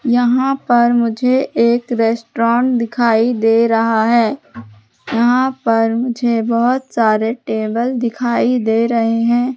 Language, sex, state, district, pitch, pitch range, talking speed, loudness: Hindi, female, Madhya Pradesh, Katni, 235 Hz, 225-245 Hz, 120 wpm, -15 LUFS